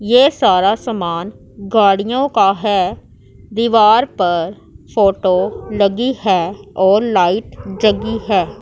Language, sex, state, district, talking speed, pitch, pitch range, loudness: Hindi, female, Punjab, Pathankot, 105 wpm, 205 Hz, 190-225 Hz, -15 LUFS